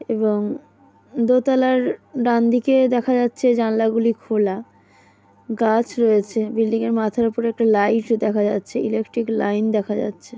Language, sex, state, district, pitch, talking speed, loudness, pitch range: Bengali, female, West Bengal, Jalpaiguri, 225 Hz, 125 wpm, -19 LUFS, 215-240 Hz